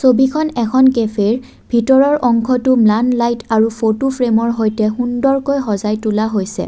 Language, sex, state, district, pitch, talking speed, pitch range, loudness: Assamese, female, Assam, Kamrup Metropolitan, 235 Hz, 125 wpm, 220-260 Hz, -15 LUFS